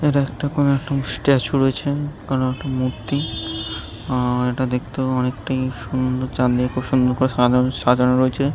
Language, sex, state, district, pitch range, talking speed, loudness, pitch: Bengali, male, West Bengal, Kolkata, 125-135 Hz, 125 wpm, -20 LUFS, 130 Hz